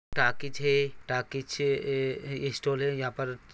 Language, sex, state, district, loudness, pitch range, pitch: Hindi, male, Maharashtra, Solapur, -30 LUFS, 130-140 Hz, 135 Hz